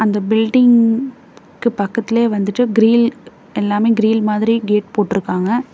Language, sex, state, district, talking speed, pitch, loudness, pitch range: Tamil, female, Tamil Nadu, Namakkal, 115 wpm, 225 Hz, -15 LUFS, 210-235 Hz